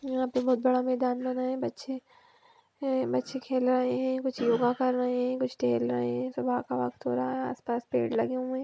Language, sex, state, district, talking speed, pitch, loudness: Hindi, female, Bihar, Gaya, 230 wpm, 255 Hz, -29 LUFS